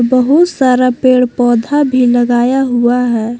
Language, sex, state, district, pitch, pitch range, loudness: Hindi, female, Jharkhand, Palamu, 250 Hz, 240-255 Hz, -11 LUFS